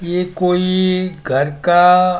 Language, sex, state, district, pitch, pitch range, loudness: Hindi, male, Delhi, New Delhi, 180 Hz, 175-185 Hz, -15 LUFS